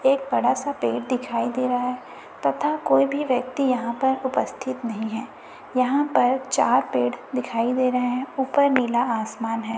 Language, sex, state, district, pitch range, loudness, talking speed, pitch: Hindi, female, Chhattisgarh, Raipur, 235-265 Hz, -23 LUFS, 180 wpm, 255 Hz